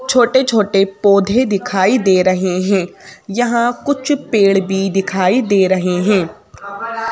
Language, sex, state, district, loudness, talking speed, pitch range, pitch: Hindi, female, Madhya Pradesh, Bhopal, -14 LUFS, 125 wpm, 190-235 Hz, 200 Hz